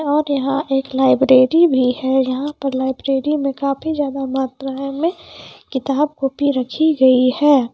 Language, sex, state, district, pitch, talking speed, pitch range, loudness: Hindi, female, Bihar, Madhepura, 275 Hz, 145 wpm, 265-290 Hz, -17 LUFS